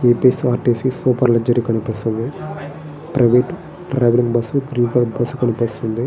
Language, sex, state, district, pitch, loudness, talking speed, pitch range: Telugu, male, Andhra Pradesh, Srikakulam, 120 Hz, -17 LUFS, 90 wpm, 120-130 Hz